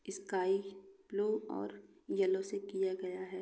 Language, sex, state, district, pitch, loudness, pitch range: Hindi, female, Bihar, Gopalganj, 195 Hz, -37 LUFS, 190-195 Hz